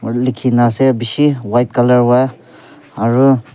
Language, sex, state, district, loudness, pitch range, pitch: Nagamese, male, Nagaland, Kohima, -13 LUFS, 120-130 Hz, 125 Hz